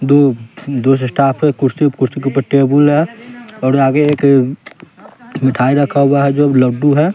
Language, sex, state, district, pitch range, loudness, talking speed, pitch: Hindi, male, Bihar, West Champaran, 135-150 Hz, -13 LUFS, 175 wpm, 140 Hz